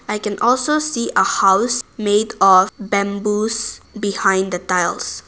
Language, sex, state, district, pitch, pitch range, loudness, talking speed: English, female, Nagaland, Kohima, 205 Hz, 195-230 Hz, -17 LUFS, 135 wpm